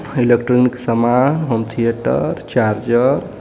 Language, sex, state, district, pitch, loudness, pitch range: Bhojpuri, male, Jharkhand, Palamu, 120 Hz, -16 LUFS, 115-125 Hz